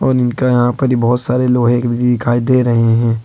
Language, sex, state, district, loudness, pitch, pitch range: Hindi, male, Jharkhand, Ranchi, -14 LUFS, 120 Hz, 120-125 Hz